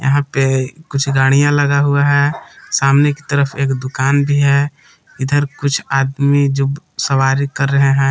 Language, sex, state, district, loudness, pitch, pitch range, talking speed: Hindi, male, Jharkhand, Palamu, -15 LUFS, 140 Hz, 135-145 Hz, 165 wpm